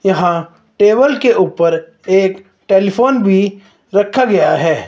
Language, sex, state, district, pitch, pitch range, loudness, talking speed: Hindi, male, Himachal Pradesh, Shimla, 195 Hz, 175-210 Hz, -13 LUFS, 125 wpm